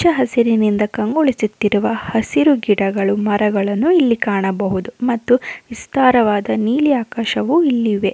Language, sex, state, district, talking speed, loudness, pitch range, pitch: Kannada, female, Karnataka, Mysore, 105 wpm, -16 LUFS, 205-255 Hz, 225 Hz